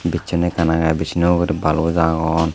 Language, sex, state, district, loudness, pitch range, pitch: Chakma, male, Tripura, Unakoti, -18 LUFS, 80-85 Hz, 80 Hz